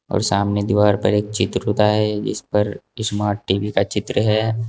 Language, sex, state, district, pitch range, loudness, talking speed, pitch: Hindi, male, Uttar Pradesh, Saharanpur, 100-105 Hz, -19 LUFS, 190 wpm, 105 Hz